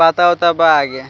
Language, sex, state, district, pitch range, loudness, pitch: Bhojpuri, male, Bihar, Muzaffarpur, 145-175 Hz, -13 LUFS, 165 Hz